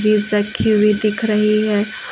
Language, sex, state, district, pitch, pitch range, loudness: Hindi, female, Uttar Pradesh, Lucknow, 215 Hz, 210-215 Hz, -16 LUFS